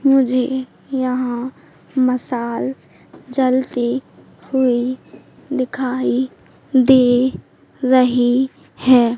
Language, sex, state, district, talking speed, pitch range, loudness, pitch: Hindi, female, Madhya Pradesh, Katni, 60 wpm, 245-260 Hz, -18 LUFS, 255 Hz